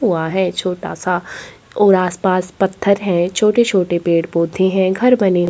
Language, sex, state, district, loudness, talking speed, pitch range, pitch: Hindi, female, Chhattisgarh, Korba, -16 LUFS, 140 wpm, 175-200 Hz, 185 Hz